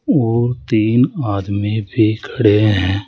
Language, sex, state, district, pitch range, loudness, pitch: Hindi, male, Rajasthan, Jaipur, 105-120 Hz, -16 LUFS, 110 Hz